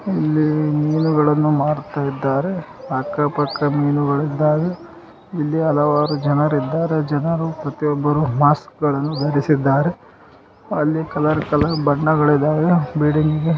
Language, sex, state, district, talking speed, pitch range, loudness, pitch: Kannada, male, Karnataka, Gulbarga, 95 wpm, 145-155 Hz, -18 LUFS, 150 Hz